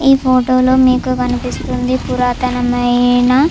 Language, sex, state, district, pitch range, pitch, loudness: Telugu, female, Andhra Pradesh, Chittoor, 245-255 Hz, 250 Hz, -13 LUFS